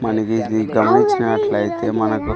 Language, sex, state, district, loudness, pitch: Telugu, male, Andhra Pradesh, Sri Satya Sai, -17 LUFS, 115 Hz